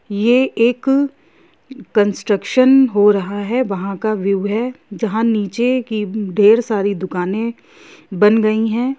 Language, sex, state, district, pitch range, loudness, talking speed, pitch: Hindi, female, Jharkhand, Jamtara, 205-240 Hz, -16 LUFS, 125 wpm, 215 Hz